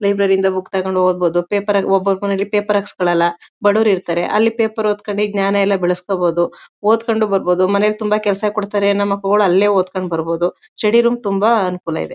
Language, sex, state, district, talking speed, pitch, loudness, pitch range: Kannada, female, Karnataka, Mysore, 175 wpm, 200 Hz, -16 LUFS, 185-210 Hz